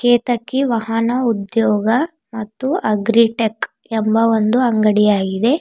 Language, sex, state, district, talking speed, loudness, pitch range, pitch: Kannada, female, Karnataka, Bidar, 85 wpm, -17 LUFS, 215-245 Hz, 225 Hz